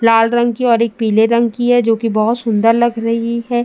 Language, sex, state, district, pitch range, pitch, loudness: Hindi, female, Uttar Pradesh, Jalaun, 225-240 Hz, 230 Hz, -14 LUFS